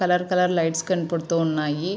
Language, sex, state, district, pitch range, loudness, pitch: Telugu, female, Andhra Pradesh, Srikakulam, 160-180 Hz, -23 LUFS, 170 Hz